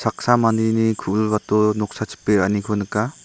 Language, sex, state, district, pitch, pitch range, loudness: Garo, male, Meghalaya, West Garo Hills, 105 Hz, 105-110 Hz, -20 LUFS